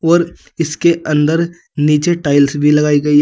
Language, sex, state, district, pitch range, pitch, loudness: Hindi, male, Uttar Pradesh, Saharanpur, 150-170 Hz, 150 Hz, -14 LUFS